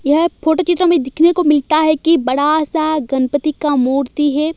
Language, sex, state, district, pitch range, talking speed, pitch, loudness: Hindi, female, Odisha, Malkangiri, 290-325 Hz, 210 wpm, 305 Hz, -15 LUFS